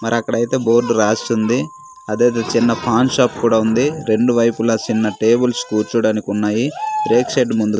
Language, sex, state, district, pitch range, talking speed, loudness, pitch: Telugu, male, Andhra Pradesh, Manyam, 110-125 Hz, 130 wpm, -16 LUFS, 115 Hz